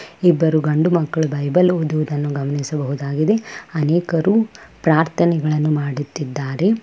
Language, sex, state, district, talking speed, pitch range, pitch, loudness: Kannada, female, Karnataka, Bellary, 80 wpm, 145-170 Hz, 155 Hz, -19 LUFS